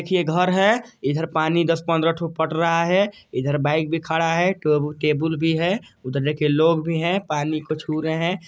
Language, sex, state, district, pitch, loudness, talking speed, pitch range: Hindi, male, Chhattisgarh, Sarguja, 165 Hz, -21 LUFS, 205 wpm, 155-170 Hz